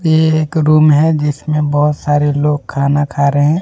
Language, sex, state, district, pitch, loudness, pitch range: Hindi, male, Jharkhand, Deoghar, 150 Hz, -13 LUFS, 145-155 Hz